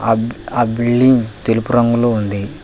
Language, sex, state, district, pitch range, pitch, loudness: Telugu, male, Telangana, Hyderabad, 110-120 Hz, 115 Hz, -15 LUFS